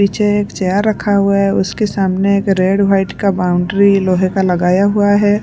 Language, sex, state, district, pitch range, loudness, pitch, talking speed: Hindi, female, Punjab, Pathankot, 190-205 Hz, -13 LUFS, 200 Hz, 200 wpm